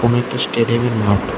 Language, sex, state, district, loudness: Bengali, male, Tripura, West Tripura, -17 LUFS